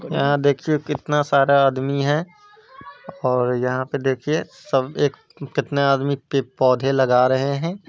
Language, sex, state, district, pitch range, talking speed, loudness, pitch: Hindi, male, Bihar, East Champaran, 130-150 Hz, 150 wpm, -20 LUFS, 140 Hz